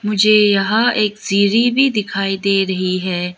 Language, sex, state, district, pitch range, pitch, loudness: Hindi, female, Arunachal Pradesh, Lower Dibang Valley, 195-215 Hz, 200 Hz, -15 LUFS